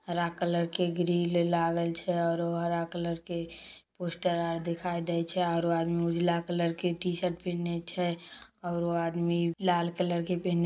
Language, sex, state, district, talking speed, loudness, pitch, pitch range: Maithili, female, Bihar, Samastipur, 175 wpm, -31 LUFS, 170 Hz, 170-175 Hz